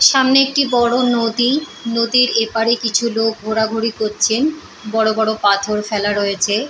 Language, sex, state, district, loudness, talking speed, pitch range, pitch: Bengali, female, West Bengal, Purulia, -16 LUFS, 135 wpm, 215-245 Hz, 225 Hz